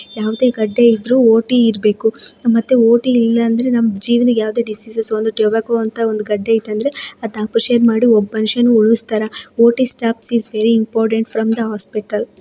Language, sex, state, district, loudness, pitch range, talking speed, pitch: Kannada, female, Karnataka, Dakshina Kannada, -14 LUFS, 220-235 Hz, 120 wpm, 225 Hz